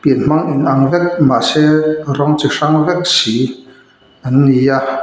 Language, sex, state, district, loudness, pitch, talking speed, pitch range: Mizo, male, Mizoram, Aizawl, -13 LUFS, 140 Hz, 155 wpm, 135-155 Hz